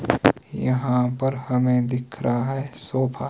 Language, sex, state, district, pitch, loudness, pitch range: Hindi, male, Himachal Pradesh, Shimla, 125 Hz, -23 LUFS, 125-135 Hz